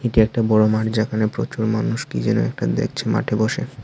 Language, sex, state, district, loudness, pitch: Bengali, male, Tripura, Unakoti, -20 LUFS, 110 Hz